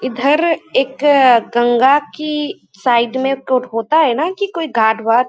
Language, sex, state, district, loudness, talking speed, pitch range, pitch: Hindi, female, West Bengal, Kolkata, -15 LUFS, 145 wpm, 240-300 Hz, 265 Hz